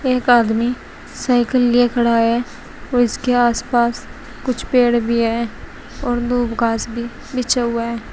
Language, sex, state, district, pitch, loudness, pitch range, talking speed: Hindi, female, Uttar Pradesh, Shamli, 240 Hz, -18 LUFS, 235-245 Hz, 150 wpm